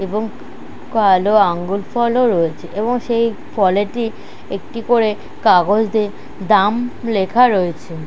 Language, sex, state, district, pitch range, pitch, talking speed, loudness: Bengali, female, West Bengal, Kolkata, 190-230 Hz, 210 Hz, 125 wpm, -16 LUFS